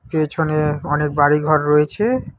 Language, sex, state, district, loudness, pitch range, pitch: Bengali, male, West Bengal, Alipurduar, -18 LUFS, 150-155 Hz, 150 Hz